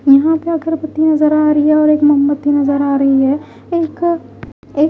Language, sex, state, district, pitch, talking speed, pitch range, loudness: Hindi, female, Bihar, Katihar, 300 Hz, 185 wpm, 285-315 Hz, -13 LUFS